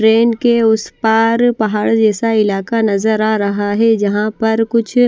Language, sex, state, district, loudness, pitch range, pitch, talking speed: Hindi, female, Bihar, Kaimur, -14 LUFS, 215-230 Hz, 220 Hz, 165 wpm